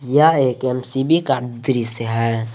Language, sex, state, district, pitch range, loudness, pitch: Hindi, male, Jharkhand, Garhwa, 115-135 Hz, -18 LUFS, 125 Hz